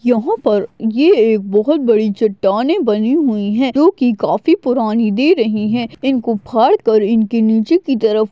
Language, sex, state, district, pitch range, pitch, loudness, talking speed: Hindi, female, Maharashtra, Aurangabad, 215-270 Hz, 230 Hz, -14 LUFS, 150 wpm